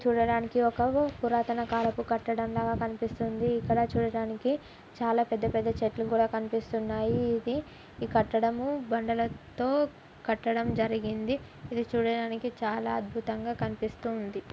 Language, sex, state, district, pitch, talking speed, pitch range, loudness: Telugu, female, Telangana, Karimnagar, 230 Hz, 110 wpm, 225-235 Hz, -30 LUFS